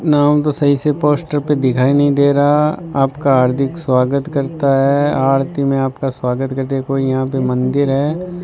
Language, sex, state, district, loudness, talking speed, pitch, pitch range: Hindi, male, Rajasthan, Bikaner, -15 LUFS, 180 wpm, 140 Hz, 135-145 Hz